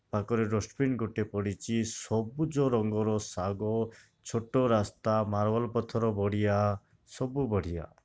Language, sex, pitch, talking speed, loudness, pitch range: Odia, male, 110 Hz, 105 wpm, -31 LUFS, 105-115 Hz